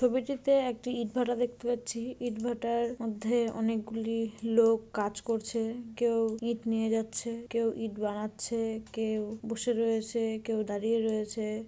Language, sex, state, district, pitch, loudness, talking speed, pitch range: Bengali, female, West Bengal, Dakshin Dinajpur, 225 Hz, -31 LUFS, 135 wpm, 220-235 Hz